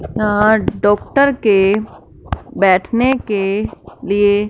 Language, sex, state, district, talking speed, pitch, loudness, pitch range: Hindi, female, Punjab, Fazilka, 80 wpm, 205 Hz, -15 LUFS, 200-220 Hz